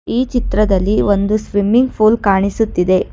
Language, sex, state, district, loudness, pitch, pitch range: Kannada, female, Karnataka, Bangalore, -15 LUFS, 210 Hz, 195-225 Hz